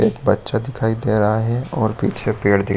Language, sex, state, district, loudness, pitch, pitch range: Hindi, male, Chhattisgarh, Bilaspur, -19 LUFS, 110 Hz, 105-115 Hz